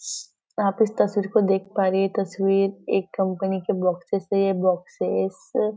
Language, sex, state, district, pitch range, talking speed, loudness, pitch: Hindi, female, Maharashtra, Nagpur, 185-200 Hz, 175 wpm, -23 LUFS, 195 Hz